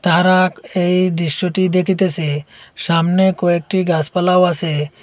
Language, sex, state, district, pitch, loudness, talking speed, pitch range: Bengali, male, Assam, Hailakandi, 180 Hz, -16 LUFS, 95 wpm, 165-185 Hz